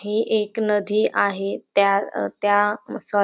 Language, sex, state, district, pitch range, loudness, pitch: Marathi, female, Maharashtra, Dhule, 200-210 Hz, -21 LUFS, 205 Hz